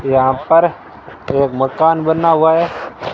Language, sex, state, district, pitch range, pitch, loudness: Hindi, male, Rajasthan, Bikaner, 135-165 Hz, 160 Hz, -14 LUFS